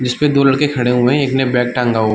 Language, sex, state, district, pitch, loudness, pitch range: Hindi, male, Bihar, Darbhanga, 125 Hz, -14 LUFS, 125-140 Hz